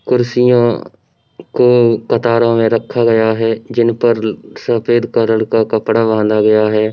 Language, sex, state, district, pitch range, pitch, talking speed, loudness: Hindi, male, Uttar Pradesh, Varanasi, 110-120 Hz, 115 Hz, 130 wpm, -13 LUFS